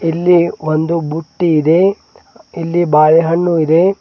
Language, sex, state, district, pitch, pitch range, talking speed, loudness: Kannada, male, Karnataka, Bidar, 165 Hz, 160-175 Hz, 120 wpm, -13 LUFS